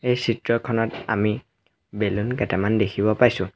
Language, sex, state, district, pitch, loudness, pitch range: Assamese, male, Assam, Sonitpur, 110 Hz, -23 LUFS, 100-120 Hz